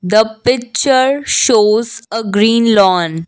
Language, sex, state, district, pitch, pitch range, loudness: English, female, Assam, Kamrup Metropolitan, 220 Hz, 205-245 Hz, -12 LUFS